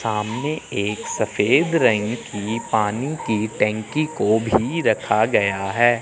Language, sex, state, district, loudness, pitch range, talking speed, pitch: Hindi, male, Chandigarh, Chandigarh, -21 LUFS, 105-120 Hz, 130 wpm, 110 Hz